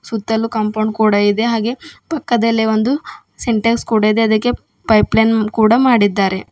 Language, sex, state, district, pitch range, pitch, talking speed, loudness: Kannada, female, Karnataka, Bidar, 215-235 Hz, 225 Hz, 140 wpm, -15 LUFS